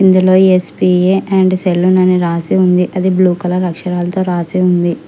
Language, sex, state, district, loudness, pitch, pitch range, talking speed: Telugu, female, Telangana, Hyderabad, -12 LUFS, 185 Hz, 180-185 Hz, 175 wpm